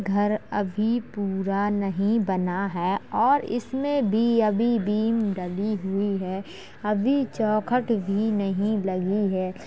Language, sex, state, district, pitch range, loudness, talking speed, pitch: Hindi, female, Uttar Pradesh, Jalaun, 195-225 Hz, -25 LUFS, 130 wpm, 205 Hz